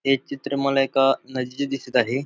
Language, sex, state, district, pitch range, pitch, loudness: Marathi, male, Maharashtra, Pune, 130-140 Hz, 135 Hz, -23 LUFS